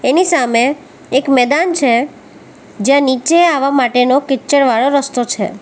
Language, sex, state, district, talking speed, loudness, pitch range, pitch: Gujarati, female, Gujarat, Valsad, 140 wpm, -13 LUFS, 245-285 Hz, 270 Hz